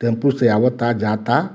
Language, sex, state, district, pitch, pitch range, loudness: Bhojpuri, male, Bihar, Muzaffarpur, 120 Hz, 115-125 Hz, -18 LUFS